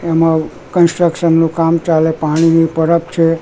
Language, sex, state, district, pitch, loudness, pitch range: Gujarati, male, Gujarat, Gandhinagar, 165 Hz, -13 LUFS, 160-170 Hz